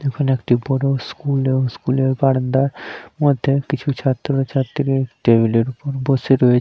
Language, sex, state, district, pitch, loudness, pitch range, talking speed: Bengali, male, West Bengal, Kolkata, 135 Hz, -18 LUFS, 130-140 Hz, 170 wpm